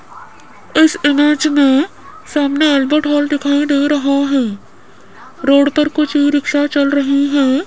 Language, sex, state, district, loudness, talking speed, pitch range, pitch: Hindi, female, Rajasthan, Jaipur, -14 LUFS, 135 wpm, 280-300 Hz, 290 Hz